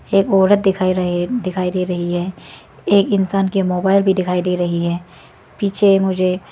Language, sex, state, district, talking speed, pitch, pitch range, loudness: Hindi, female, Arunachal Pradesh, Lower Dibang Valley, 175 wpm, 185 Hz, 180-195 Hz, -17 LUFS